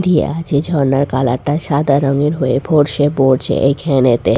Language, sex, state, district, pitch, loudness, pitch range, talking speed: Bengali, female, West Bengal, Purulia, 140 Hz, -14 LUFS, 135-150 Hz, 165 wpm